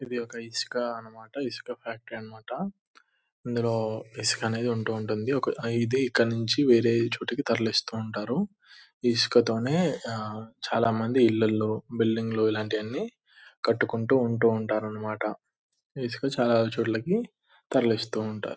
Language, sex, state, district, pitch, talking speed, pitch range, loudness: Telugu, male, Telangana, Nalgonda, 115 Hz, 115 wpm, 110-120 Hz, -27 LUFS